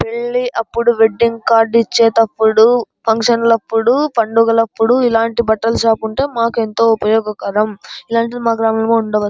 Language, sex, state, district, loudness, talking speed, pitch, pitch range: Telugu, male, Andhra Pradesh, Anantapur, -14 LUFS, 135 wpm, 230 Hz, 225-235 Hz